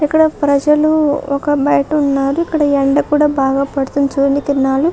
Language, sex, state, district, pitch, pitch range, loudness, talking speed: Telugu, female, Andhra Pradesh, Chittoor, 285 Hz, 275-300 Hz, -14 LUFS, 145 wpm